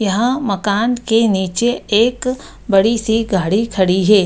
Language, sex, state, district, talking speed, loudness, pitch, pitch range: Hindi, female, Bihar, Samastipur, 125 wpm, -16 LUFS, 220 Hz, 195-235 Hz